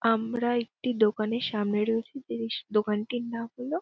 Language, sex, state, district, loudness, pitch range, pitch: Bengali, female, West Bengal, Dakshin Dinajpur, -29 LUFS, 210-240 Hz, 225 Hz